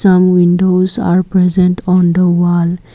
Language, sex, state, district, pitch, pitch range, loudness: English, female, Assam, Kamrup Metropolitan, 180 Hz, 175-185 Hz, -11 LUFS